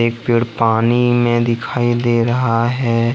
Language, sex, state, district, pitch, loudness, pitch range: Hindi, male, Jharkhand, Ranchi, 120 Hz, -16 LUFS, 115-120 Hz